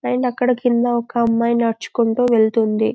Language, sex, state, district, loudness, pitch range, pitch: Telugu, female, Telangana, Karimnagar, -18 LUFS, 230-245 Hz, 235 Hz